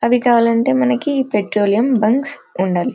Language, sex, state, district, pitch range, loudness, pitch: Telugu, female, Karnataka, Bellary, 210-260 Hz, -16 LUFS, 240 Hz